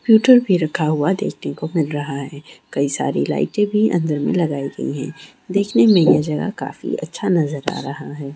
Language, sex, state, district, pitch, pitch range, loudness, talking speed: Hindi, female, Bihar, Kishanganj, 155 Hz, 140-200 Hz, -19 LUFS, 200 wpm